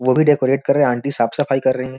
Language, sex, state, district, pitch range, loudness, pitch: Hindi, male, Bihar, Jamui, 130-140 Hz, -17 LUFS, 135 Hz